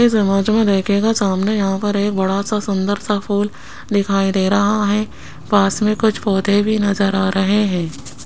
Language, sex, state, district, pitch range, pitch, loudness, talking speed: Hindi, female, Rajasthan, Jaipur, 195-210 Hz, 200 Hz, -17 LUFS, 190 wpm